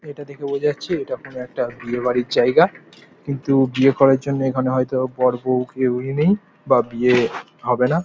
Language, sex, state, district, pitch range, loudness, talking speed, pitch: Bengali, male, West Bengal, Paschim Medinipur, 125-140 Hz, -20 LUFS, 180 wpm, 130 Hz